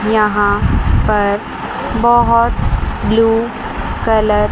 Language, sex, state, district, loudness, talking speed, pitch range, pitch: Hindi, female, Chandigarh, Chandigarh, -14 LUFS, 80 wpm, 205-225 Hz, 215 Hz